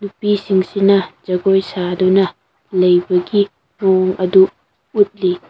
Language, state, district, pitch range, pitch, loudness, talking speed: Manipuri, Manipur, Imphal West, 180-200 Hz, 190 Hz, -16 LUFS, 75 wpm